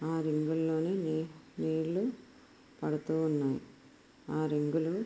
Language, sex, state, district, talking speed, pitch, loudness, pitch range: Telugu, female, Andhra Pradesh, Guntur, 120 wpm, 160 Hz, -33 LUFS, 155-160 Hz